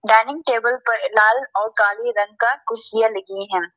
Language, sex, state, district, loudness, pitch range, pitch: Hindi, female, Arunachal Pradesh, Lower Dibang Valley, -19 LUFS, 195-235 Hz, 220 Hz